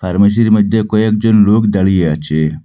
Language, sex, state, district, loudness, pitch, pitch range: Bengali, male, Assam, Hailakandi, -12 LUFS, 105 Hz, 90-110 Hz